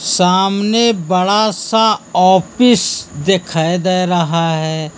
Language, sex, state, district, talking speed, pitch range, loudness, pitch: Hindi, male, Uttar Pradesh, Lucknow, 95 wpm, 170-210 Hz, -14 LUFS, 185 Hz